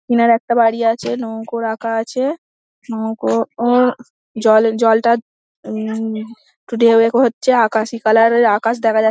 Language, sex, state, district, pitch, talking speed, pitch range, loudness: Bengali, female, West Bengal, Dakshin Dinajpur, 225 Hz, 140 wpm, 220-235 Hz, -16 LUFS